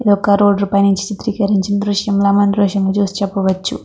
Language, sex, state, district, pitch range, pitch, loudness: Telugu, female, Andhra Pradesh, Krishna, 200-205 Hz, 200 Hz, -15 LUFS